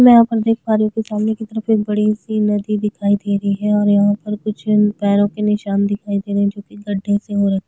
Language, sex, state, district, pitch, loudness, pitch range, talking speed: Hindi, female, Chhattisgarh, Sukma, 210 Hz, -17 LUFS, 205-215 Hz, 280 wpm